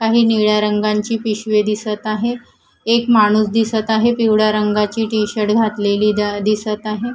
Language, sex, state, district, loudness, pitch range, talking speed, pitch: Marathi, female, Maharashtra, Gondia, -16 LUFS, 210-225 Hz, 145 wpm, 215 Hz